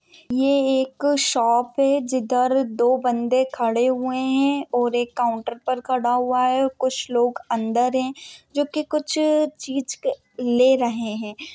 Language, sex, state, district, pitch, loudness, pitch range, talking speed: Hindi, female, Maharashtra, Pune, 255 Hz, -21 LUFS, 245-275 Hz, 150 wpm